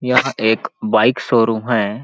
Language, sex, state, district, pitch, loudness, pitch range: Hindi, male, Chhattisgarh, Balrampur, 115 Hz, -16 LUFS, 110-125 Hz